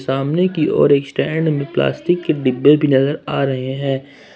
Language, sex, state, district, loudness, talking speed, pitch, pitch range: Hindi, male, Jharkhand, Ranchi, -17 LUFS, 205 wpm, 140 Hz, 135-155 Hz